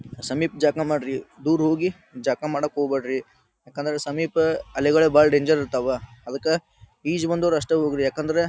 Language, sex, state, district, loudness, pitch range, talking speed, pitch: Kannada, male, Karnataka, Dharwad, -23 LUFS, 140-160 Hz, 140 wpm, 150 Hz